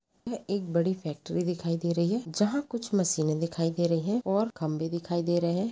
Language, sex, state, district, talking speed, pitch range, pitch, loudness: Hindi, female, Uttar Pradesh, Jalaun, 200 wpm, 165-200 Hz, 175 Hz, -29 LUFS